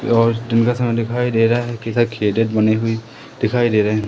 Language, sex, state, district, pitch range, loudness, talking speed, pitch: Hindi, male, Madhya Pradesh, Umaria, 110-120 Hz, -18 LUFS, 220 wpm, 115 Hz